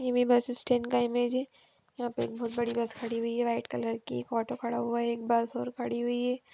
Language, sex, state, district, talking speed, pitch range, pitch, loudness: Hindi, female, Bihar, Gaya, 245 wpm, 235-245 Hz, 240 Hz, -31 LUFS